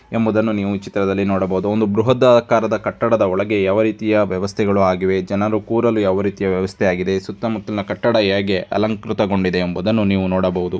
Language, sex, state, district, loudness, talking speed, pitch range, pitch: Kannada, male, Karnataka, Dharwad, -18 LUFS, 145 wpm, 95-110 Hz, 100 Hz